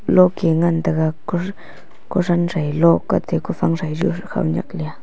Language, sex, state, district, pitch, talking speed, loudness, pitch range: Wancho, female, Arunachal Pradesh, Longding, 170 Hz, 165 wpm, -19 LUFS, 160-180 Hz